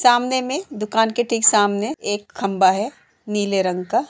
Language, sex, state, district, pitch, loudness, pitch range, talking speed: Hindi, female, Uttar Pradesh, Jalaun, 215 Hz, -19 LUFS, 200-245 Hz, 175 wpm